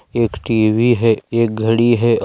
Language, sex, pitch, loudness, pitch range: Hindi, male, 115 Hz, -15 LUFS, 110-120 Hz